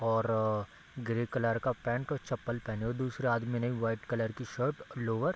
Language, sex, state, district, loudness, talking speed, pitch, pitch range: Hindi, male, Bihar, Gopalganj, -34 LUFS, 200 wpm, 120 Hz, 115-125 Hz